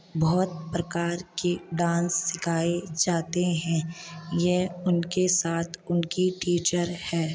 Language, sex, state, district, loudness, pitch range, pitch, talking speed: Hindi, female, Uttar Pradesh, Hamirpur, -26 LUFS, 170-175 Hz, 175 Hz, 105 wpm